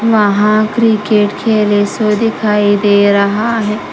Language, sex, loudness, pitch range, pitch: Hindi, female, -12 LUFS, 205-220 Hz, 210 Hz